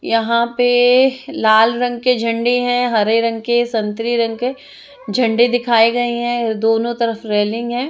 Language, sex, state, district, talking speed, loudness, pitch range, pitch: Hindi, female, Chandigarh, Chandigarh, 160 wpm, -16 LUFS, 225-245 Hz, 235 Hz